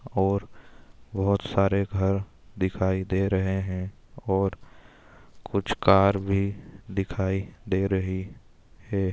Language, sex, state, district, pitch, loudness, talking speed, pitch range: Hindi, male, Bihar, Darbhanga, 95 Hz, -26 LUFS, 105 wpm, 95-100 Hz